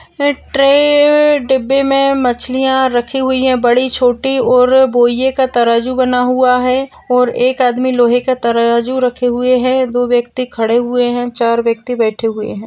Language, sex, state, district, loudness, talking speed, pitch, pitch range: Hindi, female, Maharashtra, Sindhudurg, -13 LUFS, 170 wpm, 250 Hz, 245-260 Hz